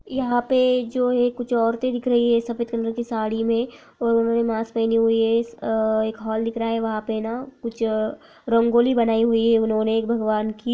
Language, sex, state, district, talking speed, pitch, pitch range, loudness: Hindi, female, Uttar Pradesh, Jyotiba Phule Nagar, 220 wpm, 230 Hz, 225-240 Hz, -22 LUFS